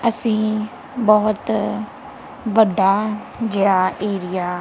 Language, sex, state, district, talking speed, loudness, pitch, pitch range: Punjabi, female, Punjab, Kapurthala, 65 wpm, -19 LUFS, 215 Hz, 200-230 Hz